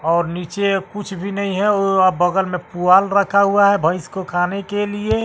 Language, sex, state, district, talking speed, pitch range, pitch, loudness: Hindi, male, Bihar, West Champaran, 205 wpm, 180-200 Hz, 195 Hz, -17 LUFS